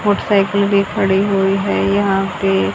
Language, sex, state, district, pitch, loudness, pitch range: Hindi, female, Haryana, Jhajjar, 195 Hz, -15 LUFS, 190-200 Hz